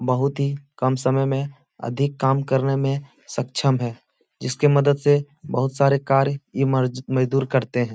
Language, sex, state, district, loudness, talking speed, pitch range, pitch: Hindi, male, Uttar Pradesh, Etah, -22 LUFS, 165 wpm, 130-140 Hz, 135 Hz